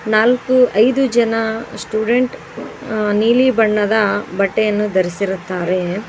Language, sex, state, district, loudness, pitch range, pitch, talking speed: Kannada, female, Karnataka, Koppal, -16 LUFS, 200-235 Hz, 215 Hz, 90 wpm